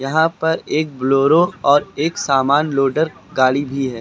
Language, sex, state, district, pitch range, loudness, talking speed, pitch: Hindi, male, Uttar Pradesh, Lucknow, 135-160 Hz, -17 LUFS, 165 wpm, 145 Hz